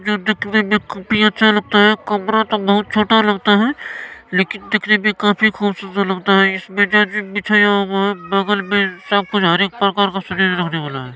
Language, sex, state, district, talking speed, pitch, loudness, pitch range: Maithili, male, Bihar, Supaul, 185 wpm, 205 Hz, -16 LUFS, 195-215 Hz